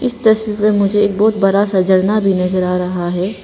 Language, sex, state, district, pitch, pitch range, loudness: Hindi, female, Arunachal Pradesh, Papum Pare, 200 Hz, 185-210 Hz, -14 LUFS